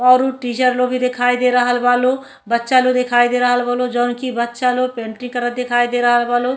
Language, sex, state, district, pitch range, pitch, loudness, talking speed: Bhojpuri, female, Uttar Pradesh, Deoria, 245-250 Hz, 245 Hz, -16 LUFS, 255 wpm